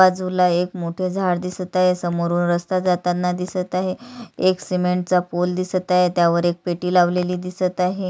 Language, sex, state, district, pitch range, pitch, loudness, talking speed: Marathi, female, Maharashtra, Sindhudurg, 175-185 Hz, 180 Hz, -20 LUFS, 165 wpm